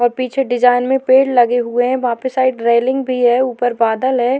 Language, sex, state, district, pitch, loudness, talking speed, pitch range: Hindi, female, Maharashtra, Chandrapur, 250 Hz, -15 LUFS, 230 wpm, 240-260 Hz